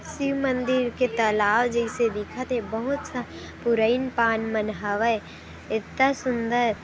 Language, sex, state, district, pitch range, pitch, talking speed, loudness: Hindi, female, Chhattisgarh, Kabirdham, 220-255 Hz, 235 Hz, 130 wpm, -25 LUFS